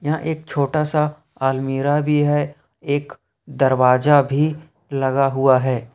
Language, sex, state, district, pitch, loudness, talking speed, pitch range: Hindi, male, Jharkhand, Ranchi, 145 Hz, -19 LUFS, 130 wpm, 135-150 Hz